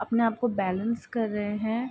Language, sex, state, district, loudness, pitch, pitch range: Hindi, female, Bihar, Darbhanga, -28 LUFS, 225 Hz, 210-235 Hz